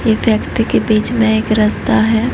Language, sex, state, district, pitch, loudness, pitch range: Hindi, female, Odisha, Nuapada, 220 Hz, -14 LUFS, 215-225 Hz